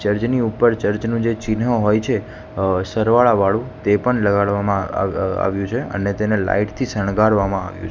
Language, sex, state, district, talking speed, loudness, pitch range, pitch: Gujarati, male, Gujarat, Gandhinagar, 165 wpm, -19 LUFS, 100-115 Hz, 105 Hz